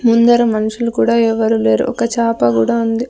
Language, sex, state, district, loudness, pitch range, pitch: Telugu, female, Andhra Pradesh, Sri Satya Sai, -14 LUFS, 220-235 Hz, 230 Hz